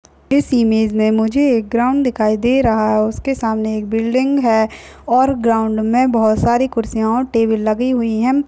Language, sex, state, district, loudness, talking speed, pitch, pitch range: Hindi, female, Uttar Pradesh, Budaun, -16 LUFS, 185 wpm, 230 Hz, 220-255 Hz